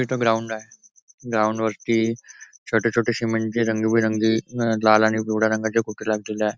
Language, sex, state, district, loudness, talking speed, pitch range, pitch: Marathi, male, Maharashtra, Nagpur, -22 LUFS, 145 wpm, 110-115 Hz, 110 Hz